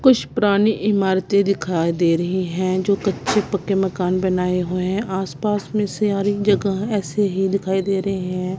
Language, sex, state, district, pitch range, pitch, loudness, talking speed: Hindi, female, Punjab, Kapurthala, 185-205 Hz, 195 Hz, -20 LUFS, 180 wpm